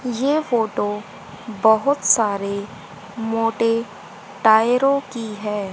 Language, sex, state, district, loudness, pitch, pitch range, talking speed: Hindi, female, Haryana, Rohtak, -19 LUFS, 225 Hz, 210-240 Hz, 40 wpm